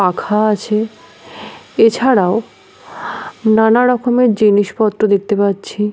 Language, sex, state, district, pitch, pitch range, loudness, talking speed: Bengali, female, West Bengal, Paschim Medinipur, 215 Hz, 210-225 Hz, -14 LUFS, 80 wpm